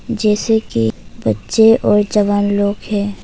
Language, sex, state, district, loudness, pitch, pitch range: Hindi, female, Arunachal Pradesh, Papum Pare, -15 LUFS, 205 Hz, 200-220 Hz